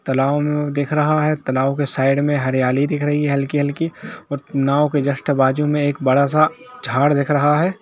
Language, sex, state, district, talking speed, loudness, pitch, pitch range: Hindi, male, Jharkhand, Jamtara, 185 wpm, -18 LUFS, 145 Hz, 140-150 Hz